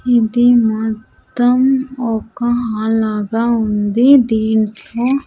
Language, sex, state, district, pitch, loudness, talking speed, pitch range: Telugu, female, Andhra Pradesh, Sri Satya Sai, 230 Hz, -15 LUFS, 90 wpm, 220-245 Hz